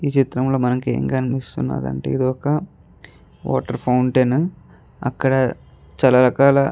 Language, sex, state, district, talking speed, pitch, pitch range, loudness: Telugu, male, Andhra Pradesh, Guntur, 135 wpm, 130 Hz, 120-135 Hz, -19 LUFS